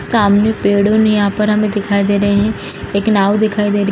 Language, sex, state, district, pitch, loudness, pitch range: Hindi, female, Bihar, East Champaran, 205 Hz, -14 LUFS, 200-215 Hz